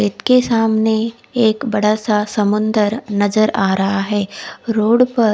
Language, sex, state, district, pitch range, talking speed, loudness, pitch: Hindi, female, Odisha, Khordha, 205-225 Hz, 145 wpm, -16 LUFS, 215 Hz